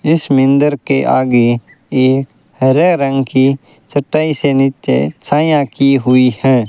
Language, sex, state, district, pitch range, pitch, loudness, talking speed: Hindi, male, Rajasthan, Bikaner, 130-145 Hz, 135 Hz, -13 LUFS, 135 wpm